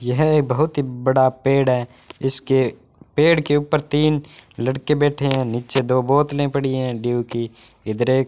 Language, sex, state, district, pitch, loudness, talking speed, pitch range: Hindi, male, Rajasthan, Bikaner, 135 Hz, -20 LUFS, 175 wpm, 125-145 Hz